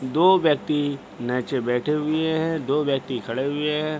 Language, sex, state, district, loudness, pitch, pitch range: Hindi, male, Bihar, Begusarai, -23 LUFS, 145 Hz, 130-155 Hz